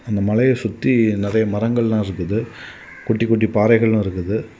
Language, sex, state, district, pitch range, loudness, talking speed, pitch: Tamil, male, Tamil Nadu, Kanyakumari, 105-115 Hz, -18 LUFS, 145 wpm, 110 Hz